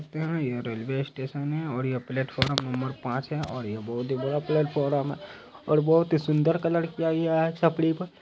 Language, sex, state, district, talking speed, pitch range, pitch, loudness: Hindi, male, Bihar, Saharsa, 220 wpm, 130-160 Hz, 145 Hz, -27 LUFS